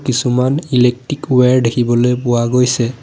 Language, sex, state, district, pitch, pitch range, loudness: Assamese, male, Assam, Sonitpur, 125 Hz, 120-130 Hz, -14 LUFS